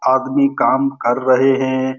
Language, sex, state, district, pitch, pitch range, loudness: Hindi, male, Bihar, Lakhisarai, 130 Hz, 130-135 Hz, -16 LUFS